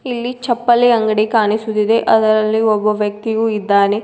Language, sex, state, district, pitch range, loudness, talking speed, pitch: Kannada, female, Karnataka, Koppal, 215-235 Hz, -15 LUFS, 120 wpm, 220 Hz